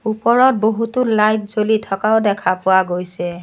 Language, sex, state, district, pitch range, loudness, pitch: Assamese, female, Assam, Sonitpur, 190-220 Hz, -16 LUFS, 215 Hz